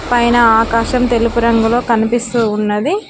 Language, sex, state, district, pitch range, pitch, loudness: Telugu, female, Telangana, Mahabubabad, 225-240 Hz, 235 Hz, -13 LUFS